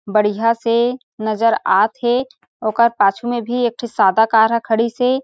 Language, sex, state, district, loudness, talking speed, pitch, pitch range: Chhattisgarhi, female, Chhattisgarh, Sarguja, -17 LUFS, 195 wpm, 230 Hz, 220-240 Hz